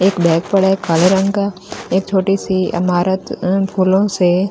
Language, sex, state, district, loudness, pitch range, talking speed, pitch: Hindi, female, Delhi, New Delhi, -15 LUFS, 180-195 Hz, 200 wpm, 190 Hz